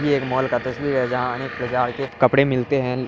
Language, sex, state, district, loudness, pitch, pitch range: Hindi, male, Bihar, Araria, -21 LUFS, 130 Hz, 125-135 Hz